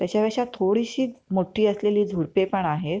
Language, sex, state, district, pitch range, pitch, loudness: Marathi, female, Maharashtra, Pune, 190-220 Hz, 205 Hz, -24 LUFS